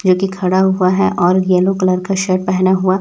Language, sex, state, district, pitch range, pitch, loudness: Hindi, male, Chhattisgarh, Raipur, 185-190 Hz, 185 Hz, -14 LUFS